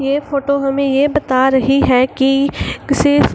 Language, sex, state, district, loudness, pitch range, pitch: Hindi, female, Bihar, Gaya, -14 LUFS, 265-280 Hz, 275 Hz